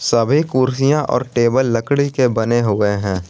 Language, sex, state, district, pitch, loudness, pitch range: Hindi, male, Jharkhand, Garhwa, 125 Hz, -16 LUFS, 115-135 Hz